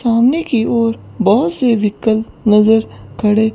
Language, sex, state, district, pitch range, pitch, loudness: Hindi, female, Chandigarh, Chandigarh, 215-240 Hz, 225 Hz, -14 LUFS